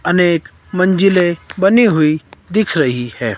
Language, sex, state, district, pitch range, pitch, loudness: Hindi, male, Himachal Pradesh, Shimla, 155-190 Hz, 175 Hz, -14 LUFS